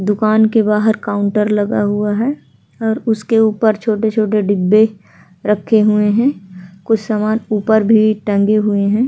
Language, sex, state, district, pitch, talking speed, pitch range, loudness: Hindi, female, Uttar Pradesh, Hamirpur, 215 Hz, 145 wpm, 205-220 Hz, -15 LUFS